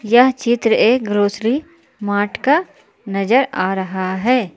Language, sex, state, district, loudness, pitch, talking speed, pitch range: Hindi, female, Jharkhand, Palamu, -17 LUFS, 225 Hz, 130 wpm, 205-255 Hz